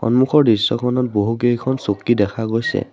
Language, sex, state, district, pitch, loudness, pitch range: Assamese, male, Assam, Sonitpur, 120 Hz, -18 LUFS, 110-125 Hz